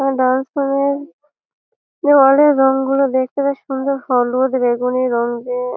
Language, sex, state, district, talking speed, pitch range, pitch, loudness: Bengali, female, West Bengal, Malda, 135 wpm, 255-280 Hz, 270 Hz, -16 LUFS